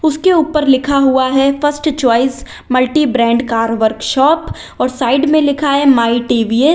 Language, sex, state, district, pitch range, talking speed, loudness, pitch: Hindi, female, Uttar Pradesh, Lalitpur, 240-295 Hz, 170 wpm, -13 LUFS, 270 Hz